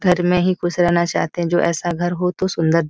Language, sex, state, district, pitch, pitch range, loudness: Hindi, female, Bihar, Jahanabad, 175 Hz, 170-180 Hz, -18 LUFS